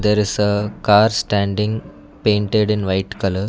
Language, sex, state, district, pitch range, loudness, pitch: English, male, Karnataka, Bangalore, 100-105 Hz, -18 LUFS, 105 Hz